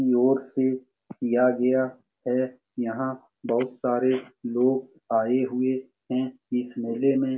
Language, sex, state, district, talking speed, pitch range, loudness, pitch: Hindi, male, Bihar, Saran, 120 wpm, 125-130 Hz, -26 LUFS, 130 Hz